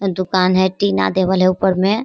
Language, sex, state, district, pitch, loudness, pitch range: Hindi, female, Bihar, Kishanganj, 185 Hz, -16 LUFS, 185-190 Hz